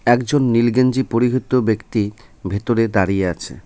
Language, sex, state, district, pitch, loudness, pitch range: Bengali, male, West Bengal, Cooch Behar, 115 Hz, -18 LUFS, 100-125 Hz